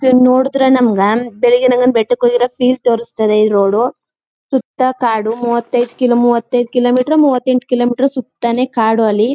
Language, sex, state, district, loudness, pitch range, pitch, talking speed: Kannada, female, Karnataka, Chamarajanagar, -13 LUFS, 230-255 Hz, 245 Hz, 145 wpm